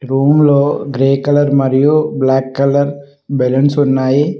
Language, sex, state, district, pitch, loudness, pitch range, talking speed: Telugu, male, Telangana, Mahabubabad, 140 Hz, -13 LUFS, 135-145 Hz, 125 wpm